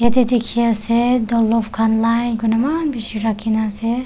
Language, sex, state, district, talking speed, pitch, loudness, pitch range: Nagamese, female, Nagaland, Kohima, 160 wpm, 230 Hz, -18 LUFS, 225-240 Hz